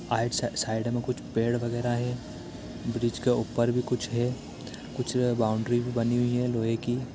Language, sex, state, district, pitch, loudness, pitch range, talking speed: Hindi, male, Bihar, East Champaran, 120 Hz, -28 LUFS, 115-125 Hz, 185 wpm